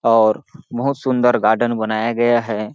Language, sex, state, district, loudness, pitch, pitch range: Hindi, male, Chhattisgarh, Balrampur, -17 LUFS, 115 Hz, 110-120 Hz